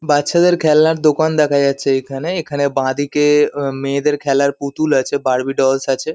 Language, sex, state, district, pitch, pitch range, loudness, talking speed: Bengali, male, West Bengal, Kolkata, 145 Hz, 135-155 Hz, -16 LUFS, 155 wpm